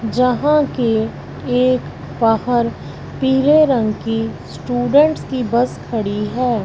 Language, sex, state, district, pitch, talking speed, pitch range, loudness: Hindi, female, Punjab, Fazilka, 245 Hz, 110 wpm, 225-260 Hz, -17 LUFS